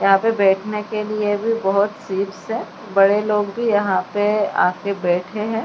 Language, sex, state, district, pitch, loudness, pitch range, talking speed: Hindi, female, Maharashtra, Chandrapur, 205 Hz, -19 LUFS, 195-215 Hz, 180 wpm